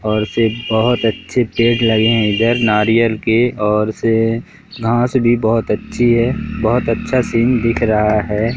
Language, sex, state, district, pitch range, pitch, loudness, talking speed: Hindi, male, Madhya Pradesh, Katni, 110-120 Hz, 115 Hz, -15 LUFS, 160 wpm